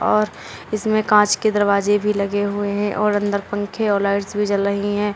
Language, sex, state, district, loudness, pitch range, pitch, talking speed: Hindi, female, Uttar Pradesh, Lalitpur, -19 LUFS, 200-210 Hz, 205 Hz, 210 wpm